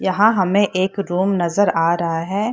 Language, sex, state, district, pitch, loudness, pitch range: Hindi, female, Bihar, Purnia, 190 Hz, -18 LUFS, 175-205 Hz